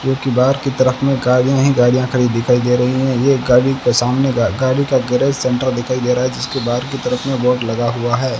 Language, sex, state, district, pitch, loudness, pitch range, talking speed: Hindi, male, Rajasthan, Bikaner, 125 Hz, -15 LUFS, 125-135 Hz, 250 wpm